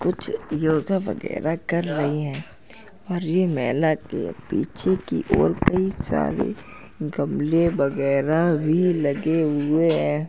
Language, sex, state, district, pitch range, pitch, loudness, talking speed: Hindi, male, Uttar Pradesh, Jalaun, 150-170 Hz, 160 Hz, -23 LUFS, 120 wpm